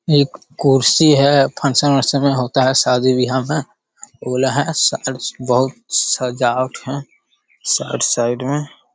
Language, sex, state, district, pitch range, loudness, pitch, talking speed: Hindi, male, Bihar, Jamui, 125-140 Hz, -16 LUFS, 135 Hz, 145 wpm